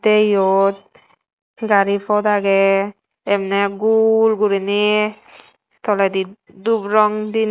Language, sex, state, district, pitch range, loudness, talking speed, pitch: Chakma, female, Tripura, West Tripura, 195-215 Hz, -17 LUFS, 95 wpm, 205 Hz